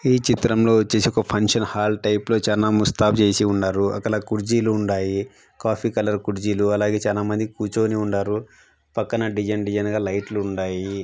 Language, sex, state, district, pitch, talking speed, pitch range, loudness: Telugu, male, Andhra Pradesh, Anantapur, 105 Hz, 165 wpm, 105-110 Hz, -21 LUFS